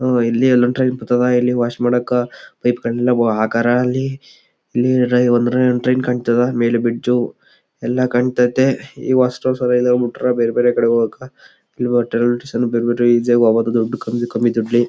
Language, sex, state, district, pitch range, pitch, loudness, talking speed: Kannada, male, Karnataka, Chamarajanagar, 120-125 Hz, 120 Hz, -16 LUFS, 130 wpm